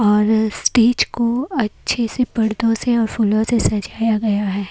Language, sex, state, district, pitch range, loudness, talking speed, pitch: Hindi, female, Haryana, Jhajjar, 210-235 Hz, -18 LUFS, 165 wpm, 225 Hz